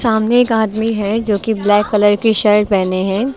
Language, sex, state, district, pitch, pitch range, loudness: Hindi, female, Uttar Pradesh, Lucknow, 215 Hz, 205-225 Hz, -14 LUFS